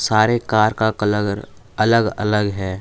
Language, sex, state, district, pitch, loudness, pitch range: Hindi, male, Jharkhand, Palamu, 110 Hz, -18 LUFS, 105-110 Hz